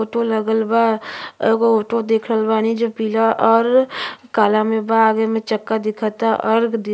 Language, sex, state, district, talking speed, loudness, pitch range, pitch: Bhojpuri, female, Uttar Pradesh, Ghazipur, 175 wpm, -17 LUFS, 220-230 Hz, 225 Hz